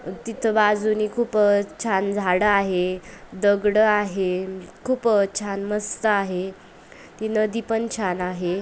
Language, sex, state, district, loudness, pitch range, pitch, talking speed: Marathi, female, Maharashtra, Aurangabad, -22 LUFS, 190-215 Hz, 205 Hz, 120 wpm